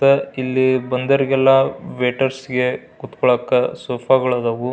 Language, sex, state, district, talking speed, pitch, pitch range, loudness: Kannada, male, Karnataka, Belgaum, 90 wpm, 130 Hz, 125-135 Hz, -18 LUFS